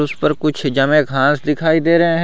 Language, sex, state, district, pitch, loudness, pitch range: Hindi, male, Jharkhand, Garhwa, 150 Hz, -15 LUFS, 145-160 Hz